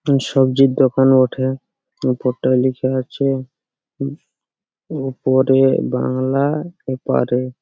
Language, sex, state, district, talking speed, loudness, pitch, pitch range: Bengali, male, West Bengal, Purulia, 80 wpm, -18 LUFS, 130 Hz, 130-135 Hz